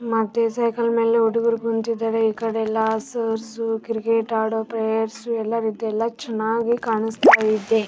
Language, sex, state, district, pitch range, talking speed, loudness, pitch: Kannada, female, Karnataka, Raichur, 220-230 Hz, 40 wpm, -21 LUFS, 225 Hz